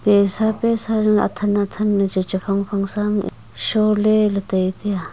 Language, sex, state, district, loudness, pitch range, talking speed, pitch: Wancho, female, Arunachal Pradesh, Longding, -19 LUFS, 195-215 Hz, 175 wpm, 205 Hz